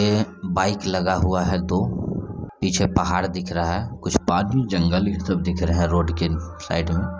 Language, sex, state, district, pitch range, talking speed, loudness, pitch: Hindi, male, Bihar, Saran, 85-95 Hz, 190 wpm, -22 LUFS, 90 Hz